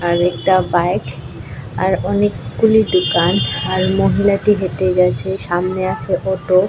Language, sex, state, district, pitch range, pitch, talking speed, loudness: Bengali, female, Tripura, West Tripura, 130-190 Hz, 180 Hz, 125 wpm, -16 LUFS